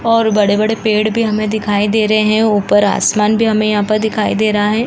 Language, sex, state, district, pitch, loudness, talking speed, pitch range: Hindi, female, Uttar Pradesh, Varanasi, 215 Hz, -13 LUFS, 245 wpm, 210-220 Hz